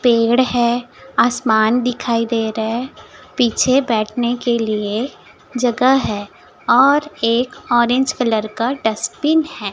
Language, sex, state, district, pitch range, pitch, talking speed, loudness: Hindi, female, Chhattisgarh, Raipur, 225-255 Hz, 240 Hz, 125 wpm, -17 LUFS